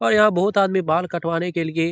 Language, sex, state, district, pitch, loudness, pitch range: Hindi, male, Bihar, Jahanabad, 175 Hz, -20 LUFS, 165-195 Hz